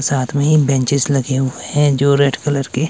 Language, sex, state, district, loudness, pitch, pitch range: Hindi, male, Himachal Pradesh, Shimla, -16 LUFS, 140 Hz, 135-145 Hz